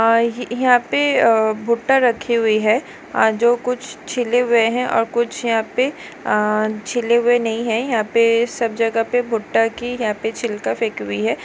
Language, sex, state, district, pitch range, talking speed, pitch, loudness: Hindi, female, Goa, North and South Goa, 225-245 Hz, 175 wpm, 235 Hz, -18 LUFS